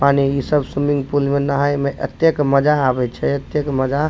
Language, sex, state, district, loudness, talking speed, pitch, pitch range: Maithili, male, Bihar, Supaul, -18 LUFS, 220 wpm, 140 Hz, 140-145 Hz